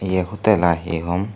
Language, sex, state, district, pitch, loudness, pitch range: Chakma, male, Tripura, Dhalai, 95 Hz, -20 LUFS, 85-100 Hz